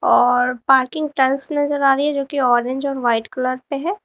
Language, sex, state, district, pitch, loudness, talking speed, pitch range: Hindi, female, Uttar Pradesh, Lalitpur, 270 Hz, -18 LUFS, 220 wpm, 255-285 Hz